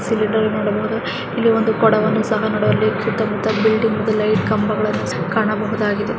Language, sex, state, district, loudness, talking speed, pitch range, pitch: Kannada, female, Karnataka, Mysore, -18 LUFS, 145 wpm, 215-220 Hz, 215 Hz